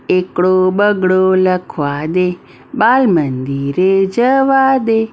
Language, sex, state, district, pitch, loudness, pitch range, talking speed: Gujarati, female, Maharashtra, Mumbai Suburban, 185 Hz, -13 LUFS, 180-225 Hz, 95 wpm